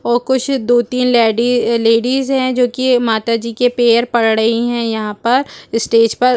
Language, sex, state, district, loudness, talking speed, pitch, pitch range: Hindi, female, Chhattisgarh, Rajnandgaon, -14 LUFS, 180 wpm, 240 Hz, 230-250 Hz